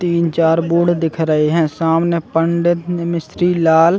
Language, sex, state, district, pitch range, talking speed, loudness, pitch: Hindi, male, Chhattisgarh, Bilaspur, 165-170 Hz, 150 wpm, -16 LUFS, 170 Hz